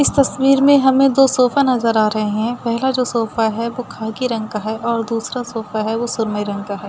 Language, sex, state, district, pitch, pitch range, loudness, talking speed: Hindi, female, Uttar Pradesh, Budaun, 235 Hz, 220-255 Hz, -17 LUFS, 250 wpm